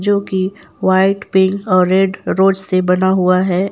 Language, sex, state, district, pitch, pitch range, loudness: Hindi, female, Jharkhand, Ranchi, 190 Hz, 185-195 Hz, -14 LUFS